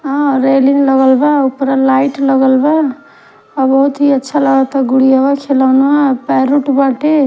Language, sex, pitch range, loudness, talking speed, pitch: Bhojpuri, female, 265-280 Hz, -11 LUFS, 125 wpm, 275 Hz